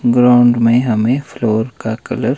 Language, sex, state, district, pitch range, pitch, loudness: Hindi, male, Himachal Pradesh, Shimla, 110-125 Hz, 120 Hz, -14 LUFS